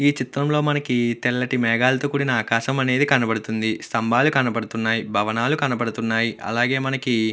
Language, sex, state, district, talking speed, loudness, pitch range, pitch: Telugu, male, Andhra Pradesh, Krishna, 125 wpm, -21 LUFS, 115-135 Hz, 120 Hz